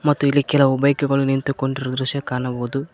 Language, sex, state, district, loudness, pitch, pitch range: Kannada, male, Karnataka, Koppal, -20 LUFS, 135 Hz, 130-140 Hz